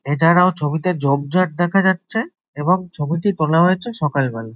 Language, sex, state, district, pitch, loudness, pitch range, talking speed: Bengali, male, West Bengal, Jalpaiguri, 170 Hz, -18 LUFS, 145-185 Hz, 130 wpm